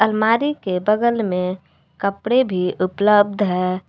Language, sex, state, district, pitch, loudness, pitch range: Hindi, female, Jharkhand, Palamu, 200 Hz, -19 LUFS, 185-220 Hz